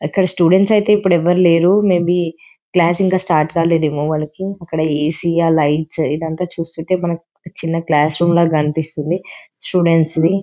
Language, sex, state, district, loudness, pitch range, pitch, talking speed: Telugu, female, Telangana, Karimnagar, -16 LUFS, 160-180 Hz, 170 Hz, 150 wpm